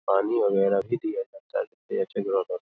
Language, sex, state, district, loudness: Hindi, male, Uttar Pradesh, Hamirpur, -27 LUFS